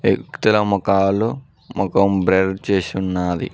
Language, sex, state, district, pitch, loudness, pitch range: Telugu, male, Telangana, Mahabubabad, 100 Hz, -18 LUFS, 95-105 Hz